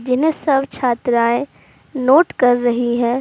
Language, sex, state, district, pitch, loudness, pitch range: Hindi, female, Uttar Pradesh, Jalaun, 250 Hz, -16 LUFS, 240-275 Hz